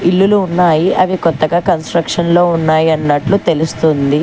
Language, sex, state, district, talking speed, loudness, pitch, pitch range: Telugu, female, Telangana, Hyderabad, 115 wpm, -13 LUFS, 170 Hz, 155-180 Hz